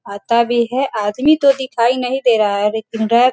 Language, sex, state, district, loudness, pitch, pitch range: Hindi, female, Bihar, Sitamarhi, -16 LUFS, 235 Hz, 220-260 Hz